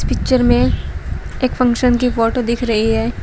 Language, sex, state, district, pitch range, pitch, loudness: Hindi, female, Uttar Pradesh, Shamli, 230-250 Hz, 245 Hz, -16 LUFS